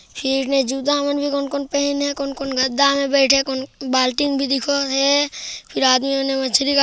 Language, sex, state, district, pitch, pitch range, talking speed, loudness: Hindi, male, Chhattisgarh, Jashpur, 275 Hz, 270-285 Hz, 220 wpm, -19 LUFS